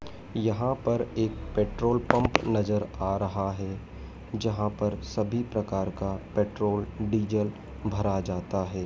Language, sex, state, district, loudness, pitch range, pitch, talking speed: Hindi, male, Madhya Pradesh, Dhar, -29 LUFS, 95-110 Hz, 105 Hz, 130 wpm